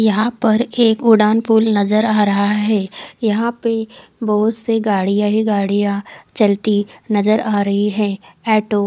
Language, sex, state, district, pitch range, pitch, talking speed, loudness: Hindi, female, Odisha, Khordha, 205-220 Hz, 215 Hz, 150 wpm, -16 LUFS